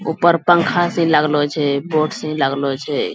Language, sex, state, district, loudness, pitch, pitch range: Angika, female, Bihar, Bhagalpur, -17 LUFS, 155 Hz, 145-170 Hz